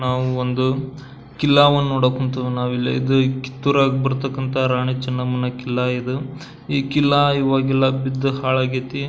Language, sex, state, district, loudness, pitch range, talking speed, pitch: Kannada, male, Karnataka, Belgaum, -19 LUFS, 130-135 Hz, 120 wpm, 130 Hz